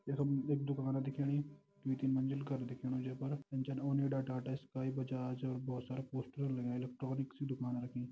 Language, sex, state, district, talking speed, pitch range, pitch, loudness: Hindi, male, Uttarakhand, Tehri Garhwal, 175 wpm, 130-140 Hz, 135 Hz, -40 LUFS